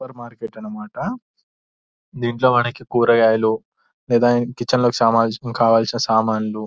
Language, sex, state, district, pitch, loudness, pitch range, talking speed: Telugu, male, Telangana, Nalgonda, 115 Hz, -18 LUFS, 110-120 Hz, 115 wpm